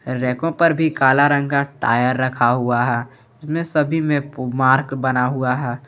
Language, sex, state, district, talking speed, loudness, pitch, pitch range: Hindi, male, Jharkhand, Garhwa, 175 wpm, -18 LUFS, 130 Hz, 125-145 Hz